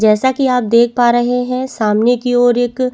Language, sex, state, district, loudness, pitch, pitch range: Hindi, female, Chhattisgarh, Bastar, -14 LUFS, 245 Hz, 240-255 Hz